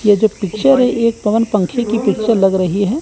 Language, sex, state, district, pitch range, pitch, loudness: Hindi, male, Chandigarh, Chandigarh, 200-230 Hz, 215 Hz, -15 LUFS